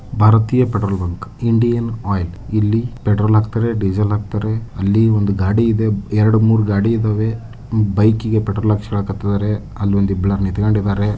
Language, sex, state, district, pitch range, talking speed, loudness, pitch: Kannada, male, Karnataka, Dharwad, 100-110 Hz, 140 wpm, -17 LUFS, 105 Hz